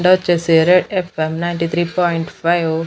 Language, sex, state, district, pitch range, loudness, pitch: Telugu, female, Andhra Pradesh, Annamaya, 165-180 Hz, -16 LUFS, 175 Hz